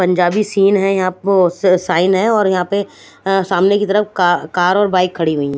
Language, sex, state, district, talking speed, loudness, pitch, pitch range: Hindi, female, Punjab, Fazilka, 225 wpm, -14 LUFS, 190 Hz, 180-200 Hz